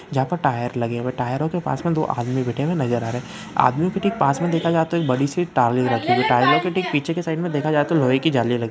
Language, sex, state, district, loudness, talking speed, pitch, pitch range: Hindi, male, Uttarakhand, Uttarkashi, -21 LUFS, 315 wpm, 145 Hz, 125-170 Hz